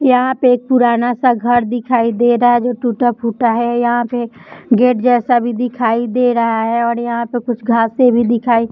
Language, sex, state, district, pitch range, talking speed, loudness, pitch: Hindi, female, Bihar, Samastipur, 235-245 Hz, 205 wpm, -14 LUFS, 240 Hz